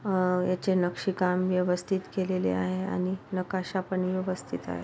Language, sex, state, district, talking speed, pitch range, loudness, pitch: Marathi, female, Maharashtra, Solapur, 150 wpm, 155-185 Hz, -29 LUFS, 185 Hz